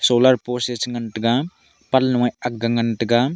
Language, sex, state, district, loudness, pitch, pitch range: Wancho, male, Arunachal Pradesh, Longding, -20 LUFS, 120 Hz, 115-125 Hz